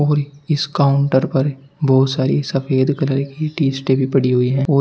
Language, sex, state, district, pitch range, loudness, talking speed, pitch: Hindi, male, Uttar Pradesh, Shamli, 135-145 Hz, -17 LUFS, 160 wpm, 140 Hz